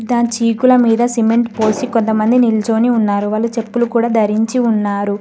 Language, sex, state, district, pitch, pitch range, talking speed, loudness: Telugu, female, Telangana, Mahabubabad, 230 Hz, 215-240 Hz, 150 wpm, -14 LUFS